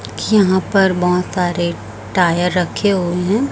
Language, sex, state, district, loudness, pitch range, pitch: Hindi, female, Chhattisgarh, Raipur, -16 LUFS, 175-195 Hz, 180 Hz